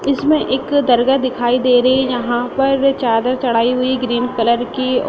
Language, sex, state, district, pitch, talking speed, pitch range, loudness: Hindi, female, Bihar, Sitamarhi, 255 Hz, 225 wpm, 245-265 Hz, -15 LUFS